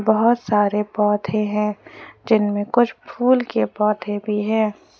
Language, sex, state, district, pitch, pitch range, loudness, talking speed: Hindi, female, Jharkhand, Ranchi, 210 Hz, 210-225 Hz, -20 LUFS, 130 wpm